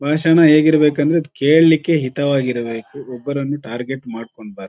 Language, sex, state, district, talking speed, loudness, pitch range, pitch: Kannada, male, Karnataka, Shimoga, 130 wpm, -16 LUFS, 120-155 Hz, 140 Hz